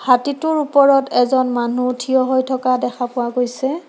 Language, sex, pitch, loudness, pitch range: Assamese, female, 255 Hz, -17 LUFS, 245-275 Hz